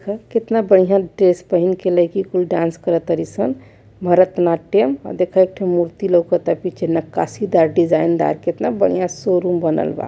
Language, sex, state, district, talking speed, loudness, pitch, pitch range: Hindi, male, Uttar Pradesh, Varanasi, 180 wpm, -17 LUFS, 180 Hz, 170-190 Hz